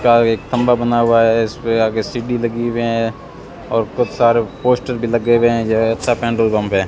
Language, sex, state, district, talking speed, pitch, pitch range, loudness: Hindi, male, Rajasthan, Bikaner, 235 wpm, 115 Hz, 115-120 Hz, -16 LUFS